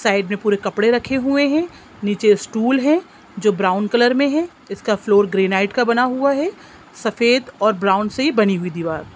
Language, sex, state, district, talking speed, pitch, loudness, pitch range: Hindi, female, Bihar, Sitamarhi, 195 wpm, 220 Hz, -18 LUFS, 200-265 Hz